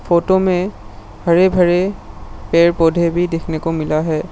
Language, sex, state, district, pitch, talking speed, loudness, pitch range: Hindi, male, Assam, Sonitpur, 165 Hz, 155 wpm, -16 LUFS, 155-175 Hz